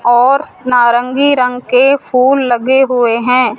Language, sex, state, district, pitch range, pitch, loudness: Hindi, female, Rajasthan, Jaipur, 240-265 Hz, 250 Hz, -11 LUFS